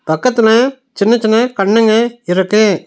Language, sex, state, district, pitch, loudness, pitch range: Tamil, male, Tamil Nadu, Nilgiris, 220 Hz, -12 LUFS, 200-240 Hz